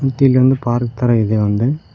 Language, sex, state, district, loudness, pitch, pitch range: Kannada, male, Karnataka, Koppal, -15 LUFS, 120 Hz, 115-135 Hz